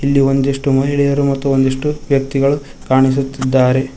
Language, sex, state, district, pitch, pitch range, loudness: Kannada, male, Karnataka, Koppal, 135 Hz, 135-140 Hz, -15 LUFS